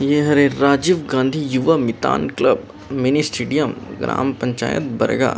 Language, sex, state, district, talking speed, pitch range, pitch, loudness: Chhattisgarhi, male, Chhattisgarh, Rajnandgaon, 135 wpm, 125-150 Hz, 135 Hz, -18 LUFS